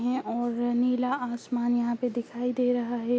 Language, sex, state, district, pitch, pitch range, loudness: Hindi, female, Uttar Pradesh, Ghazipur, 245 Hz, 240-250 Hz, -28 LUFS